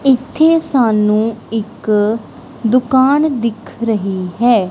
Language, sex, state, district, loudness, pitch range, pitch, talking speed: Punjabi, female, Punjab, Kapurthala, -15 LUFS, 215-260 Hz, 230 Hz, 90 wpm